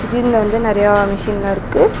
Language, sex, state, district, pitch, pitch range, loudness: Tamil, female, Tamil Nadu, Namakkal, 210 Hz, 205-235 Hz, -15 LUFS